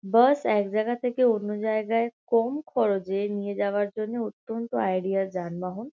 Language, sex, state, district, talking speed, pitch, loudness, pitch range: Bengali, female, West Bengal, Kolkata, 140 wpm, 215 Hz, -26 LUFS, 200-230 Hz